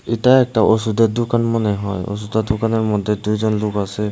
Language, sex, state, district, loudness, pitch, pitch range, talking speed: Bengali, male, Tripura, Unakoti, -18 LUFS, 110 Hz, 105-115 Hz, 175 wpm